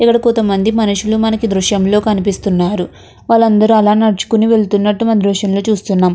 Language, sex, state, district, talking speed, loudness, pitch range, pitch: Telugu, female, Andhra Pradesh, Krishna, 165 wpm, -13 LUFS, 200-220 Hz, 210 Hz